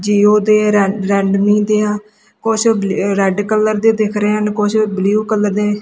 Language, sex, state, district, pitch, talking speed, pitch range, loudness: Punjabi, female, Punjab, Kapurthala, 210 Hz, 185 wpm, 205-215 Hz, -14 LUFS